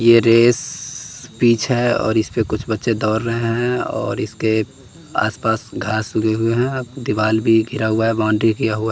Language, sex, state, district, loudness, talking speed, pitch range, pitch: Hindi, male, Bihar, West Champaran, -18 LUFS, 180 wpm, 110-120 Hz, 115 Hz